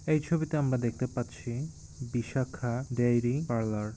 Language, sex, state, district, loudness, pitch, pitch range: Bengali, male, West Bengal, Paschim Medinipur, -31 LUFS, 125 Hz, 120-145 Hz